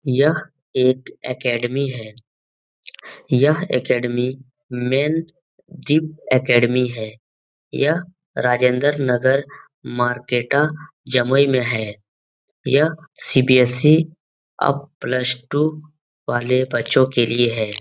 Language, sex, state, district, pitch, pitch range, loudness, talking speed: Hindi, male, Bihar, Jamui, 130 Hz, 120-145 Hz, -19 LUFS, 90 wpm